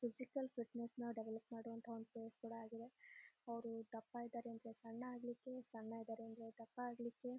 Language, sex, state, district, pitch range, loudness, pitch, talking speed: Kannada, female, Karnataka, Shimoga, 225-240 Hz, -51 LUFS, 230 Hz, 165 wpm